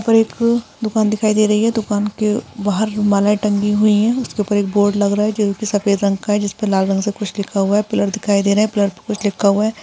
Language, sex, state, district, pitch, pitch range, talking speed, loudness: Hindi, female, Bihar, Madhepura, 210 Hz, 200-215 Hz, 270 wpm, -17 LUFS